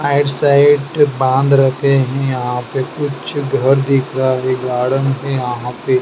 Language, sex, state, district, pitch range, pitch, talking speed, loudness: Hindi, male, Madhya Pradesh, Dhar, 130-140 Hz, 135 Hz, 150 wpm, -15 LUFS